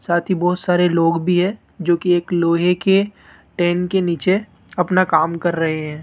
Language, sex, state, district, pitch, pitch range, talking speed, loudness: Hindi, male, Rajasthan, Jaipur, 175 Hz, 170-185 Hz, 190 wpm, -18 LUFS